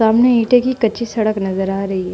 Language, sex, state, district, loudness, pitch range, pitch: Hindi, female, Uttar Pradesh, Budaun, -16 LUFS, 195-240 Hz, 220 Hz